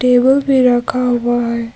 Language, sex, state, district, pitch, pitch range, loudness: Hindi, female, Arunachal Pradesh, Papum Pare, 245 Hz, 240-255 Hz, -14 LUFS